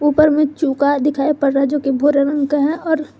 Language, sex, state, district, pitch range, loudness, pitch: Hindi, female, Jharkhand, Garhwa, 280-300 Hz, -16 LUFS, 290 Hz